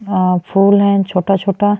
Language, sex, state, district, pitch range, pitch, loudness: Bhojpuri, female, Uttar Pradesh, Ghazipur, 185-200 Hz, 195 Hz, -13 LUFS